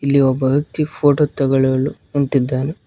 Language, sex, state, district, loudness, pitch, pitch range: Kannada, male, Karnataka, Koppal, -17 LUFS, 140 Hz, 135-145 Hz